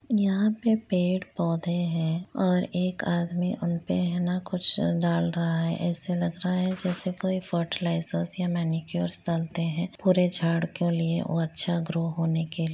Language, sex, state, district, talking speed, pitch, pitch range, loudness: Hindi, female, Jharkhand, Jamtara, 160 wpm, 175 Hz, 165-185 Hz, -27 LUFS